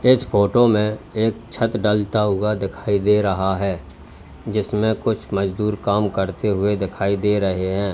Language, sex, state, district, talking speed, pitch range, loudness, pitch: Hindi, male, Uttar Pradesh, Lalitpur, 160 wpm, 95-105 Hz, -20 LUFS, 105 Hz